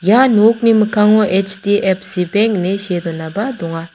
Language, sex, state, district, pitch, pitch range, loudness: Garo, female, Meghalaya, South Garo Hills, 200 Hz, 180-215 Hz, -14 LUFS